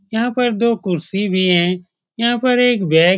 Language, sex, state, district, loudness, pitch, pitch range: Hindi, male, Bihar, Saran, -16 LUFS, 195 Hz, 180-240 Hz